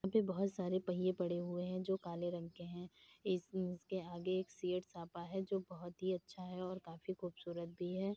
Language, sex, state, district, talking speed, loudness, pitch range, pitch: Hindi, female, Uttar Pradesh, Budaun, 185 wpm, -42 LUFS, 175-185 Hz, 180 Hz